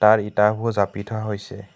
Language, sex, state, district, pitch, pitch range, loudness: Assamese, male, Assam, Hailakandi, 105 Hz, 100-110 Hz, -22 LUFS